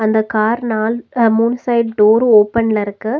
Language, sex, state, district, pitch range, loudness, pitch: Tamil, female, Tamil Nadu, Nilgiris, 215-235 Hz, -14 LUFS, 225 Hz